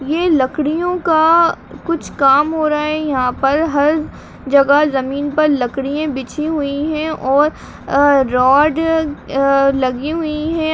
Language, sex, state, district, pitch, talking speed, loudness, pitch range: Hindi, female, Uttarakhand, Uttarkashi, 295 Hz, 145 wpm, -15 LUFS, 275-315 Hz